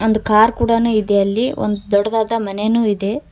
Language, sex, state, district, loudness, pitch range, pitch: Kannada, female, Karnataka, Koppal, -16 LUFS, 205-230 Hz, 215 Hz